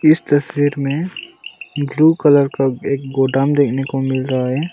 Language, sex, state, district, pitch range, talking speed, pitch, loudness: Hindi, male, Arunachal Pradesh, Longding, 135-155 Hz, 180 wpm, 140 Hz, -16 LUFS